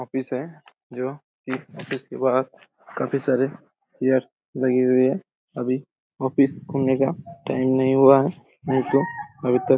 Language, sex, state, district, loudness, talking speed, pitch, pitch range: Hindi, male, Chhattisgarh, Raigarh, -23 LUFS, 155 wpm, 130 Hz, 130-140 Hz